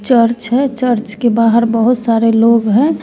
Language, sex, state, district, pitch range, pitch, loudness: Hindi, female, Bihar, West Champaran, 230-245 Hz, 235 Hz, -12 LUFS